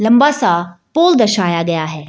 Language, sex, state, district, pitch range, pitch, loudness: Hindi, female, Bihar, Jahanabad, 170-245 Hz, 180 Hz, -14 LUFS